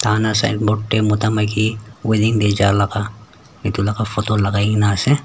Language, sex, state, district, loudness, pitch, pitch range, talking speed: Nagamese, male, Nagaland, Dimapur, -18 LUFS, 105 Hz, 105-110 Hz, 195 wpm